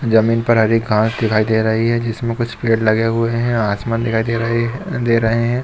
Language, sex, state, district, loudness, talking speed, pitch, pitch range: Hindi, male, Jharkhand, Sahebganj, -17 LUFS, 235 wpm, 115 Hz, 110-115 Hz